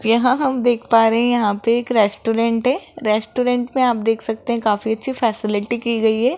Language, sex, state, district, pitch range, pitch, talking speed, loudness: Hindi, female, Rajasthan, Jaipur, 225-250 Hz, 230 Hz, 215 wpm, -18 LUFS